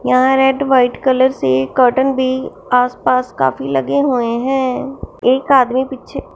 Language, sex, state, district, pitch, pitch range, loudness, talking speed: Hindi, female, Punjab, Fazilka, 255 Hz, 245-265 Hz, -15 LUFS, 140 wpm